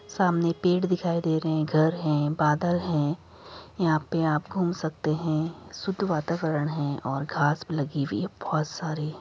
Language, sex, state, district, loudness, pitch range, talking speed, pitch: Hindi, female, Uttar Pradesh, Jyotiba Phule Nagar, -27 LUFS, 150-170 Hz, 175 wpm, 160 Hz